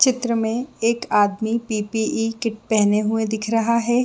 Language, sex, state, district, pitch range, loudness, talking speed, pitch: Hindi, female, Jharkhand, Jamtara, 220-235 Hz, -21 LUFS, 190 wpm, 225 Hz